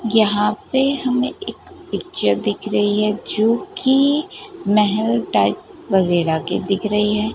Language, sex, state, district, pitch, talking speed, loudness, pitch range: Hindi, female, Gujarat, Gandhinagar, 220 Hz, 140 wpm, -18 LUFS, 205-265 Hz